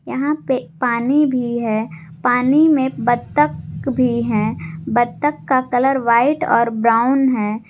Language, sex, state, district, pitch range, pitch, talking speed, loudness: Hindi, female, Jharkhand, Garhwa, 230-270 Hz, 245 Hz, 135 wpm, -17 LUFS